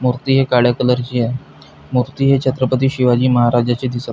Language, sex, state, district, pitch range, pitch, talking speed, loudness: Marathi, male, Maharashtra, Pune, 120-130 Hz, 125 Hz, 160 wpm, -16 LUFS